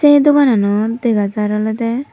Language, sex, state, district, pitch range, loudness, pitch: Chakma, female, Tripura, Dhalai, 210-275 Hz, -14 LUFS, 230 Hz